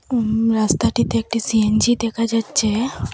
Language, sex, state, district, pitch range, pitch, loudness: Bengali, female, Assam, Hailakandi, 220-230 Hz, 230 Hz, -19 LUFS